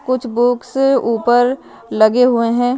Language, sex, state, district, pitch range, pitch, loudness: Hindi, female, Himachal Pradesh, Shimla, 235-250 Hz, 245 Hz, -15 LUFS